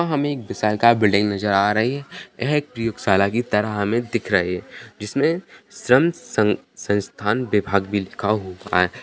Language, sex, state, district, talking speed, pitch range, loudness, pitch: Hindi, male, Bihar, Jahanabad, 185 wpm, 100-125 Hz, -21 LUFS, 105 Hz